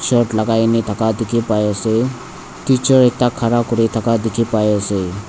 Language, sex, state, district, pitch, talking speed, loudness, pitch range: Nagamese, male, Nagaland, Dimapur, 115 Hz, 170 wpm, -16 LUFS, 110-120 Hz